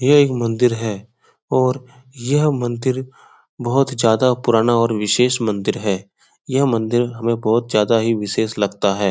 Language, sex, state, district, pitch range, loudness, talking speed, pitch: Hindi, male, Uttar Pradesh, Etah, 110-130 Hz, -18 LUFS, 160 wpm, 120 Hz